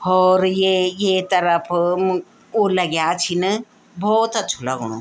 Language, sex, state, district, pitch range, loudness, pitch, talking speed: Garhwali, female, Uttarakhand, Tehri Garhwal, 175-200 Hz, -19 LUFS, 185 Hz, 120 wpm